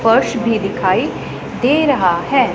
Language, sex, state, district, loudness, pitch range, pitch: Hindi, female, Punjab, Pathankot, -16 LUFS, 225-270 Hz, 235 Hz